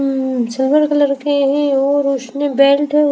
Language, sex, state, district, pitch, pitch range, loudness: Hindi, female, Haryana, Rohtak, 280 Hz, 270-290 Hz, -15 LUFS